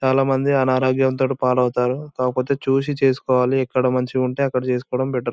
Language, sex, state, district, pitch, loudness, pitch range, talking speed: Telugu, male, Andhra Pradesh, Anantapur, 130 Hz, -20 LUFS, 125-135 Hz, 145 wpm